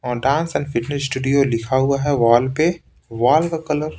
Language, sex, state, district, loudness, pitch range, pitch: Hindi, male, Bihar, Patna, -18 LUFS, 125-155 Hz, 140 Hz